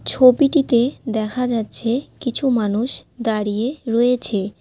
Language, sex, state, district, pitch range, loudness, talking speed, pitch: Bengali, female, West Bengal, Alipurduar, 220-255 Hz, -19 LUFS, 90 wpm, 235 Hz